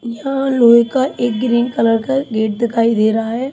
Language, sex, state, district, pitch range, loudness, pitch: Hindi, female, Haryana, Charkhi Dadri, 225-260 Hz, -15 LUFS, 235 Hz